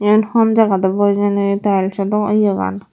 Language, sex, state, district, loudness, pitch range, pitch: Chakma, female, Tripura, Unakoti, -15 LUFS, 195-210 Hz, 205 Hz